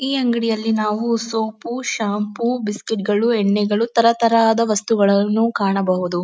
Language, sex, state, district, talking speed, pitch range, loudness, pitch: Kannada, female, Karnataka, Dharwad, 105 wpm, 205-230 Hz, -18 LUFS, 220 Hz